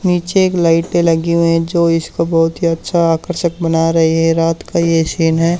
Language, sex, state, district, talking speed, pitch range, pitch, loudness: Hindi, male, Haryana, Charkhi Dadri, 215 wpm, 165-170 Hz, 165 Hz, -14 LUFS